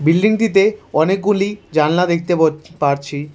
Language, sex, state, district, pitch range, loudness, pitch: Bengali, male, West Bengal, Cooch Behar, 155-195 Hz, -16 LUFS, 170 Hz